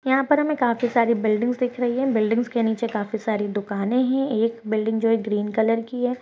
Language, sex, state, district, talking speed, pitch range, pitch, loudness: Hindi, female, Chhattisgarh, Kabirdham, 230 wpm, 220-250 Hz, 230 Hz, -22 LUFS